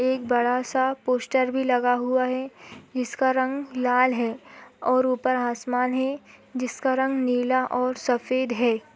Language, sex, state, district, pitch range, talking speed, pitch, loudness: Hindi, female, Chhattisgarh, Rajnandgaon, 245-260 Hz, 145 wpm, 255 Hz, -24 LUFS